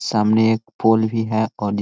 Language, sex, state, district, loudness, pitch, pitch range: Hindi, male, Chhattisgarh, Korba, -18 LUFS, 110 Hz, 105-110 Hz